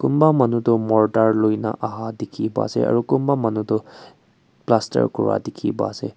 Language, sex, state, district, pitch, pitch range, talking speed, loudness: Nagamese, male, Nagaland, Kohima, 110 Hz, 110-120 Hz, 175 wpm, -20 LUFS